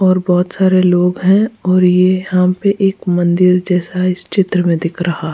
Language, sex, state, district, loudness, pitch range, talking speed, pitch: Hindi, female, Goa, North and South Goa, -13 LUFS, 180-185 Hz, 200 wpm, 180 Hz